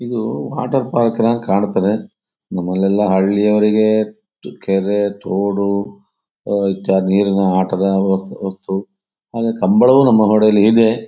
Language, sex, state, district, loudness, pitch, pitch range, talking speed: Kannada, male, Karnataka, Dakshina Kannada, -16 LUFS, 100 Hz, 95-115 Hz, 105 wpm